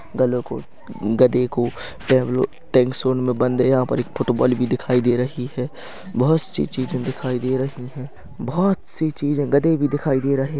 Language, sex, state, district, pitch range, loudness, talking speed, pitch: Hindi, male, Chhattisgarh, Rajnandgaon, 125-140 Hz, -21 LUFS, 170 wpm, 130 Hz